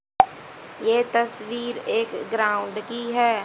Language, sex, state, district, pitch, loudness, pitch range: Hindi, female, Haryana, Jhajjar, 235 Hz, -24 LUFS, 225-240 Hz